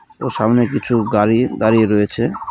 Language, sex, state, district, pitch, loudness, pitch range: Bengali, male, West Bengal, Cooch Behar, 115 Hz, -16 LUFS, 105-120 Hz